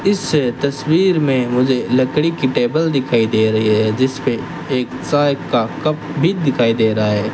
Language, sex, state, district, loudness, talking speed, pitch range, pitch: Hindi, male, Rajasthan, Bikaner, -16 LUFS, 180 wpm, 115-150 Hz, 130 Hz